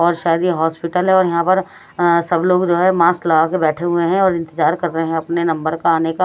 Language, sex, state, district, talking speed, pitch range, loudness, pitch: Hindi, female, Haryana, Rohtak, 270 wpm, 165-180 Hz, -16 LUFS, 170 Hz